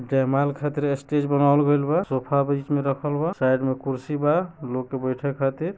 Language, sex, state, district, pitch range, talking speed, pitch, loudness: Bhojpuri, male, Bihar, East Champaran, 135-145 Hz, 185 wpm, 140 Hz, -23 LUFS